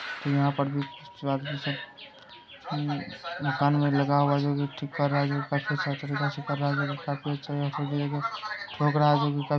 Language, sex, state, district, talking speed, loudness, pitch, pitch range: Hindi, male, Bihar, Araria, 145 wpm, -28 LUFS, 145 Hz, 140-145 Hz